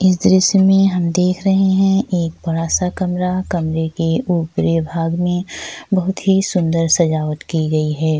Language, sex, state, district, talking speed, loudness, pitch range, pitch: Hindi, female, Chhattisgarh, Sukma, 160 wpm, -16 LUFS, 165-190 Hz, 175 Hz